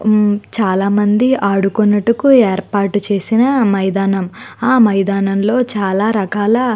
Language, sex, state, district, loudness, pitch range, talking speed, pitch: Telugu, female, Andhra Pradesh, Guntur, -14 LUFS, 195-225 Hz, 90 wpm, 205 Hz